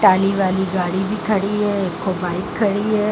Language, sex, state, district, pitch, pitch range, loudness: Hindi, female, Bihar, Vaishali, 195 Hz, 185-210 Hz, -19 LUFS